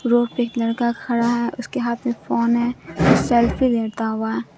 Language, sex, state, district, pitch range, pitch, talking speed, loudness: Hindi, female, Bihar, Katihar, 235-240 Hz, 235 Hz, 185 wpm, -20 LUFS